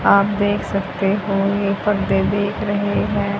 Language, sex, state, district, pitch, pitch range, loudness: Hindi, female, Haryana, Jhajjar, 200 Hz, 195-205 Hz, -19 LUFS